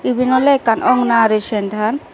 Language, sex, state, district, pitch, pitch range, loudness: Chakma, female, Tripura, Dhalai, 235 Hz, 215-250 Hz, -15 LUFS